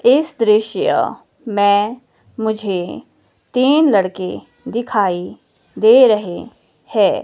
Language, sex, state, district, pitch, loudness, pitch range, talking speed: Hindi, female, Himachal Pradesh, Shimla, 220 Hz, -16 LUFS, 200-270 Hz, 85 wpm